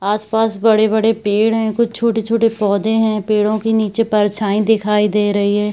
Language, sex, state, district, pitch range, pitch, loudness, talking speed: Hindi, female, Chhattisgarh, Bilaspur, 210-225 Hz, 215 Hz, -15 LUFS, 165 wpm